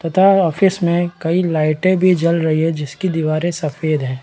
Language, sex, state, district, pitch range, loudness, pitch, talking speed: Hindi, male, Chhattisgarh, Raigarh, 155-180 Hz, -16 LUFS, 170 Hz, 185 wpm